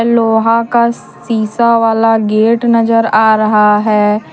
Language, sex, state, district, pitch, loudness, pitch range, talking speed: Hindi, female, Jharkhand, Deoghar, 225 Hz, -11 LUFS, 215-230 Hz, 125 wpm